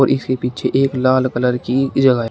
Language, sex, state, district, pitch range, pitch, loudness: Hindi, male, Uttar Pradesh, Shamli, 125-135 Hz, 130 Hz, -17 LUFS